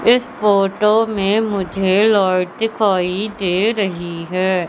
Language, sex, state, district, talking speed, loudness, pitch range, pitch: Hindi, female, Madhya Pradesh, Katni, 115 wpm, -17 LUFS, 185-215 Hz, 195 Hz